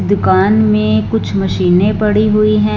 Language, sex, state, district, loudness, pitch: Hindi, female, Punjab, Fazilka, -12 LUFS, 110 Hz